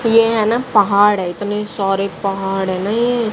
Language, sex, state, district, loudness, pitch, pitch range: Hindi, female, Haryana, Jhajjar, -16 LUFS, 205 Hz, 195-225 Hz